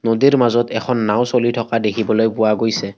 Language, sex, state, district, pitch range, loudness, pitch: Assamese, male, Assam, Kamrup Metropolitan, 110-120 Hz, -17 LUFS, 115 Hz